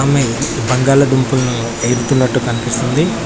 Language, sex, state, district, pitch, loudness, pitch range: Telugu, male, Telangana, Mahabubabad, 130 Hz, -14 LUFS, 120-135 Hz